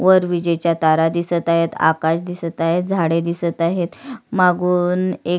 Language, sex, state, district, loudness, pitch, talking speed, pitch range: Marathi, female, Maharashtra, Sindhudurg, -18 LUFS, 170 Hz, 145 wpm, 165-180 Hz